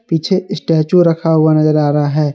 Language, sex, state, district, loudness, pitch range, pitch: Hindi, male, Jharkhand, Garhwa, -13 LUFS, 155-175 Hz, 160 Hz